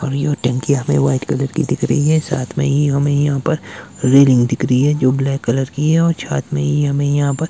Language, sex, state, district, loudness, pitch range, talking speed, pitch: Hindi, male, Himachal Pradesh, Shimla, -16 LUFS, 135-150 Hz, 265 wpm, 140 Hz